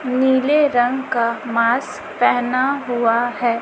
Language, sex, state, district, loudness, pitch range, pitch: Hindi, female, Chhattisgarh, Raipur, -18 LUFS, 235-265 Hz, 245 Hz